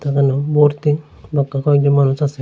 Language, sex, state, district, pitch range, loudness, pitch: Bengali, male, Tripura, Unakoti, 140-150 Hz, -16 LUFS, 140 Hz